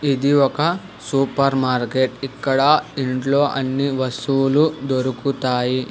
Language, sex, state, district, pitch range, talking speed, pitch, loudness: Telugu, male, Telangana, Hyderabad, 130-140 Hz, 90 wpm, 135 Hz, -19 LUFS